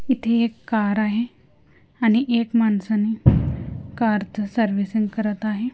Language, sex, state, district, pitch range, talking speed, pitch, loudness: Hindi, female, Punjab, Fazilka, 210-230 Hz, 135 wpm, 220 Hz, -21 LUFS